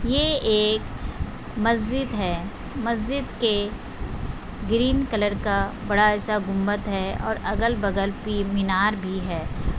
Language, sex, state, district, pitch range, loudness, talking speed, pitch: Hindi, female, Chhattisgarh, Bastar, 195-230 Hz, -24 LUFS, 110 wpm, 210 Hz